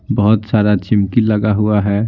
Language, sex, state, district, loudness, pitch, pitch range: Hindi, male, Bihar, Patna, -14 LUFS, 105 Hz, 105-110 Hz